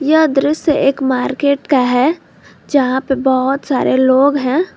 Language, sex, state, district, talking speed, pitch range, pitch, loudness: Hindi, female, Jharkhand, Garhwa, 150 wpm, 260-295 Hz, 275 Hz, -14 LUFS